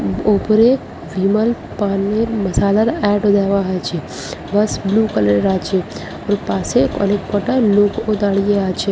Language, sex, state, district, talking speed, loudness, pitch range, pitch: Bengali, female, West Bengal, Malda, 140 wpm, -16 LUFS, 195-215 Hz, 205 Hz